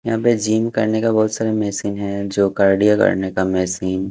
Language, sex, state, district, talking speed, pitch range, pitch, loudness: Hindi, male, Haryana, Jhajjar, 205 wpm, 95-110 Hz, 100 Hz, -18 LUFS